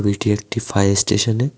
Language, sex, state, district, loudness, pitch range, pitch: Bengali, male, Tripura, West Tripura, -18 LUFS, 100-115 Hz, 105 Hz